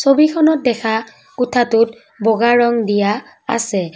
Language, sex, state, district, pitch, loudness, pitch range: Assamese, female, Assam, Kamrup Metropolitan, 230 Hz, -16 LUFS, 220-250 Hz